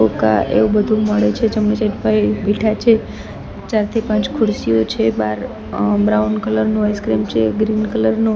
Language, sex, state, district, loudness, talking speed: Gujarati, female, Gujarat, Gandhinagar, -17 LUFS, 185 wpm